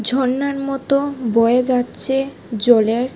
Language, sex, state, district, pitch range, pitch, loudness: Bengali, female, Tripura, West Tripura, 235-275 Hz, 255 Hz, -17 LUFS